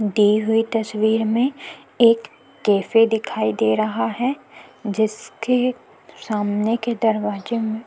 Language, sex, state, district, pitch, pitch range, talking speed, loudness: Hindi, female, Uttarakhand, Tehri Garhwal, 220 Hz, 210-230 Hz, 120 wpm, -20 LUFS